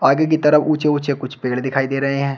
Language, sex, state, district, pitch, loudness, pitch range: Hindi, male, Uttar Pradesh, Shamli, 140 Hz, -18 LUFS, 135-150 Hz